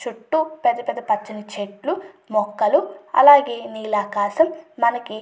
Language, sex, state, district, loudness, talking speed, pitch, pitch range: Telugu, female, Andhra Pradesh, Chittoor, -20 LUFS, 105 wpm, 235 Hz, 210-295 Hz